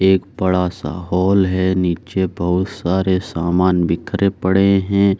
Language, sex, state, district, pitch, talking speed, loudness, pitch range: Hindi, male, Bihar, Saran, 95 Hz, 140 wpm, -17 LUFS, 90-95 Hz